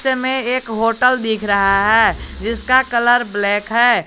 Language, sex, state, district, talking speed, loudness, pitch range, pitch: Hindi, male, Jharkhand, Garhwa, 135 wpm, -16 LUFS, 220-250 Hz, 230 Hz